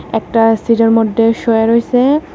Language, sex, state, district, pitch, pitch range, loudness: Bengali, female, Tripura, West Tripura, 230 Hz, 225-235 Hz, -12 LUFS